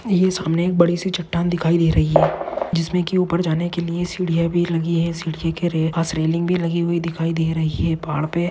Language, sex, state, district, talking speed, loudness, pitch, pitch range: Hindi, male, Maharashtra, Dhule, 235 wpm, -20 LUFS, 170 Hz, 165-175 Hz